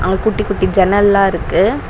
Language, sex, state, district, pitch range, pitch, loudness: Tamil, female, Tamil Nadu, Chennai, 190-205 Hz, 195 Hz, -14 LUFS